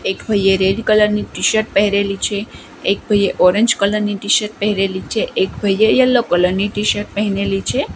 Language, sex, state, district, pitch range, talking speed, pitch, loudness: Gujarati, female, Gujarat, Gandhinagar, 195-215 Hz, 180 wpm, 205 Hz, -16 LUFS